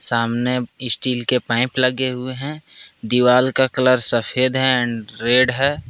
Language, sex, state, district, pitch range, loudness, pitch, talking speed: Hindi, male, Jharkhand, Ranchi, 120-130 Hz, -18 LUFS, 125 Hz, 140 wpm